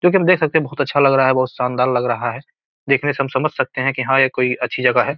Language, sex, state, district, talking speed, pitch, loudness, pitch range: Hindi, male, Bihar, Gopalganj, 335 wpm, 135 Hz, -17 LUFS, 125-145 Hz